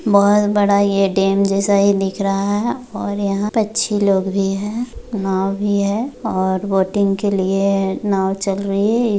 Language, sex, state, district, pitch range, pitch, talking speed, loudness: Hindi, female, Bihar, Muzaffarpur, 195-210 Hz, 200 Hz, 175 wpm, -17 LUFS